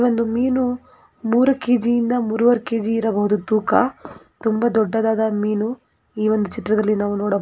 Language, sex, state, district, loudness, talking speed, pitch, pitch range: Kannada, female, Karnataka, Gulbarga, -19 LUFS, 135 wpm, 225 Hz, 215-240 Hz